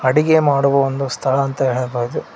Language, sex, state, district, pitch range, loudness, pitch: Kannada, male, Karnataka, Koppal, 130-140 Hz, -17 LUFS, 135 Hz